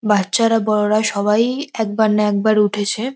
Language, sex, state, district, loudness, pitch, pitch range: Bengali, female, West Bengal, North 24 Parganas, -17 LUFS, 215 Hz, 210-225 Hz